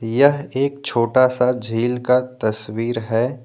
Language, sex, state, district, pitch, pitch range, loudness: Hindi, male, Jharkhand, Deoghar, 125 Hz, 115-130 Hz, -19 LUFS